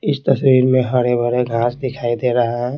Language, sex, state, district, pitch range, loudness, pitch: Hindi, male, Bihar, Patna, 120-130 Hz, -17 LUFS, 125 Hz